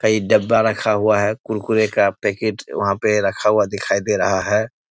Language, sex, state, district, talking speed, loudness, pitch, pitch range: Hindi, male, Bihar, Muzaffarpur, 195 wpm, -18 LUFS, 110 Hz, 105-110 Hz